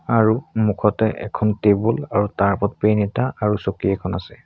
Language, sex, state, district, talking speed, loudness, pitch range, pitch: Assamese, male, Assam, Sonitpur, 175 wpm, -20 LUFS, 100-110 Hz, 105 Hz